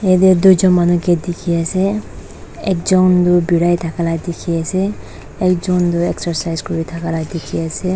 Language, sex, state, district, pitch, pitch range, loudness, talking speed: Nagamese, female, Nagaland, Dimapur, 175 Hz, 165-185 Hz, -16 LUFS, 160 wpm